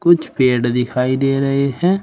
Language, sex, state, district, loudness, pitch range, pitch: Hindi, male, Uttar Pradesh, Shamli, -16 LUFS, 125-160 Hz, 135 Hz